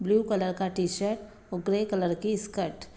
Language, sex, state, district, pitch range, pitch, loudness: Hindi, female, Bihar, Sitamarhi, 180-210 Hz, 200 Hz, -29 LUFS